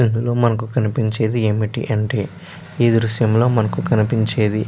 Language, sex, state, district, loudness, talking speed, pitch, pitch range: Telugu, male, Andhra Pradesh, Chittoor, -18 LUFS, 130 wpm, 115 Hz, 110-120 Hz